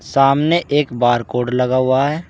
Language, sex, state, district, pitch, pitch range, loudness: Hindi, male, Uttar Pradesh, Saharanpur, 130 Hz, 125-145 Hz, -16 LUFS